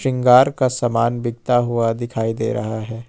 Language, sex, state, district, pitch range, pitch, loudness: Hindi, male, Jharkhand, Ranchi, 115-125 Hz, 120 Hz, -18 LUFS